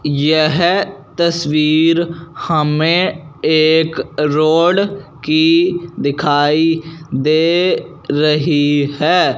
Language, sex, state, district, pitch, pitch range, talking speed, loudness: Hindi, male, Punjab, Fazilka, 155 Hz, 150-165 Hz, 65 wpm, -14 LUFS